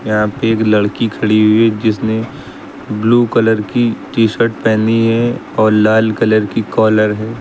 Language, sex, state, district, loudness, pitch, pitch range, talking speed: Hindi, male, Uttar Pradesh, Lucknow, -13 LUFS, 110 Hz, 110-115 Hz, 170 wpm